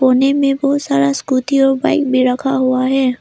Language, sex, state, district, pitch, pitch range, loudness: Hindi, female, Arunachal Pradesh, Lower Dibang Valley, 265 Hz, 255-275 Hz, -14 LUFS